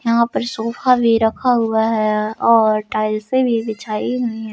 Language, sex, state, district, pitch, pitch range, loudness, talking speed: Hindi, female, Jharkhand, Palamu, 225 Hz, 215-235 Hz, -17 LUFS, 170 wpm